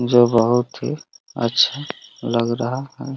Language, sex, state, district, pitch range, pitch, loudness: Hindi, male, Uttar Pradesh, Ghazipur, 115-140 Hz, 120 Hz, -20 LUFS